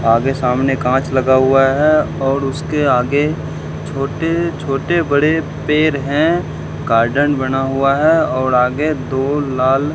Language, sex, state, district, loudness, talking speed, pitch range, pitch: Hindi, male, Rajasthan, Bikaner, -16 LUFS, 135 wpm, 130-150 Hz, 140 Hz